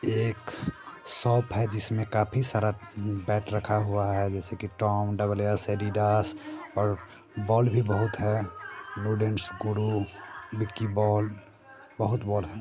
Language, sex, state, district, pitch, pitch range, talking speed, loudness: Hindi, male, Bihar, Sitamarhi, 105 Hz, 105-110 Hz, 135 wpm, -28 LUFS